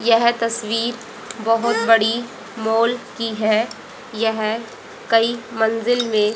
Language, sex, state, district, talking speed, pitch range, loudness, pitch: Hindi, female, Haryana, Rohtak, 105 wpm, 220-235 Hz, -19 LUFS, 225 Hz